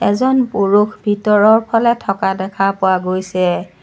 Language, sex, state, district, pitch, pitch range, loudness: Assamese, female, Assam, Sonitpur, 200 Hz, 190-220 Hz, -15 LUFS